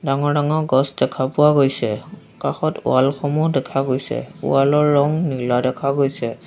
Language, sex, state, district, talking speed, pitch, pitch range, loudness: Assamese, female, Assam, Sonitpur, 155 wpm, 140 Hz, 130-145 Hz, -19 LUFS